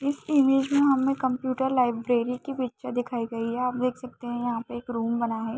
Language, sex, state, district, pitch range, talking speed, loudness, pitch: Hindi, female, Jharkhand, Sahebganj, 240-265 Hz, 225 wpm, -26 LUFS, 250 Hz